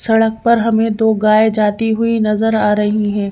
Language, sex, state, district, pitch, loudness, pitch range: Hindi, female, Madhya Pradesh, Bhopal, 220 Hz, -14 LUFS, 210-225 Hz